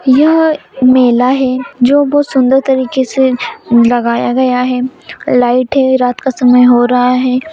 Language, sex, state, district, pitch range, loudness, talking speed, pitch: Hindi, female, Bihar, Madhepura, 250-265 Hz, -10 LUFS, 150 wpm, 255 Hz